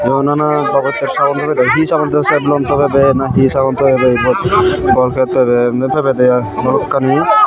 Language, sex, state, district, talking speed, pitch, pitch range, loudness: Chakma, female, Tripura, Unakoti, 190 wpm, 135 Hz, 130-150 Hz, -12 LUFS